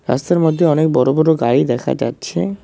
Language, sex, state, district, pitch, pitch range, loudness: Bengali, male, West Bengal, Cooch Behar, 155 Hz, 135-165 Hz, -15 LUFS